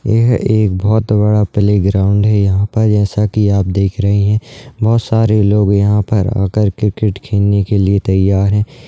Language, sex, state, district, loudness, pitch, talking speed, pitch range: Hindi, male, Uttarakhand, Uttarkashi, -13 LUFS, 105 Hz, 185 wpm, 100-110 Hz